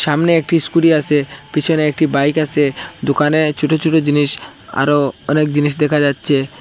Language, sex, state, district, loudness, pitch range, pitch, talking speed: Bengali, male, Assam, Hailakandi, -15 LUFS, 145-155 Hz, 150 Hz, 155 wpm